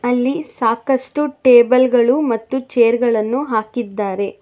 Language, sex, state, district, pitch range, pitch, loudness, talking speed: Kannada, female, Karnataka, Bangalore, 230-260 Hz, 245 Hz, -16 LUFS, 110 wpm